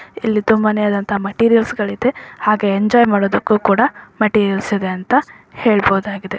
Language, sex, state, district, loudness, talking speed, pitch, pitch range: Kannada, female, Karnataka, Bijapur, -16 LUFS, 120 wpm, 210 Hz, 200-225 Hz